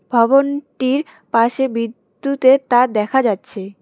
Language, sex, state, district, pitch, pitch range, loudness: Bengali, female, West Bengal, Cooch Behar, 245 Hz, 220-265 Hz, -17 LUFS